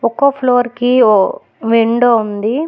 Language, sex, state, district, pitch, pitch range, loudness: Telugu, female, Telangana, Hyderabad, 240 Hz, 225-250 Hz, -13 LUFS